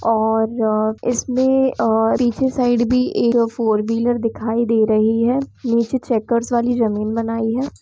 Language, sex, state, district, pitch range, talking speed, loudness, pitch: Hindi, female, Jharkhand, Jamtara, 225-245 Hz, 140 wpm, -18 LUFS, 235 Hz